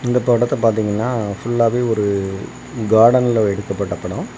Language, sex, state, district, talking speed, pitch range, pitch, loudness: Tamil, male, Tamil Nadu, Kanyakumari, 110 wpm, 100-120 Hz, 110 Hz, -17 LUFS